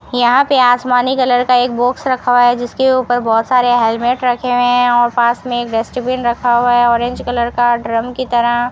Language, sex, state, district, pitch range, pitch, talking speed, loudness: Hindi, female, Rajasthan, Bikaner, 240-250 Hz, 245 Hz, 220 wpm, -13 LUFS